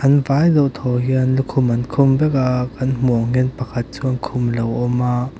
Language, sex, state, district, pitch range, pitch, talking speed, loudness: Mizo, male, Mizoram, Aizawl, 125-135 Hz, 130 Hz, 220 wpm, -18 LUFS